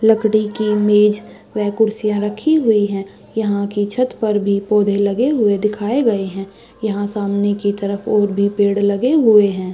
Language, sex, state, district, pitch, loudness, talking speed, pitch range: Hindi, female, Chhattisgarh, Bastar, 210 Hz, -17 LUFS, 180 wpm, 200-220 Hz